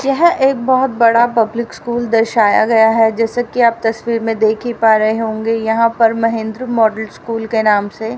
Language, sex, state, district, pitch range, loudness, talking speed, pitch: Hindi, female, Haryana, Rohtak, 220-235 Hz, -14 LUFS, 200 wpm, 225 Hz